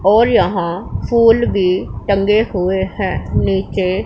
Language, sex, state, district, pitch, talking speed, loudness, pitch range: Hindi, female, Punjab, Pathankot, 195 Hz, 120 wpm, -15 LUFS, 185-210 Hz